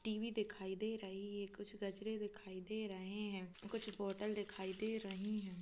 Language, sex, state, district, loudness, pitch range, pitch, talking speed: Hindi, female, Chhattisgarh, Kabirdham, -45 LUFS, 195-215 Hz, 205 Hz, 180 wpm